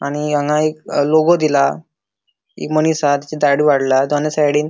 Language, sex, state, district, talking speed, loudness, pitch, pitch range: Konkani, male, Goa, North and South Goa, 190 wpm, -16 LUFS, 150 Hz, 145-155 Hz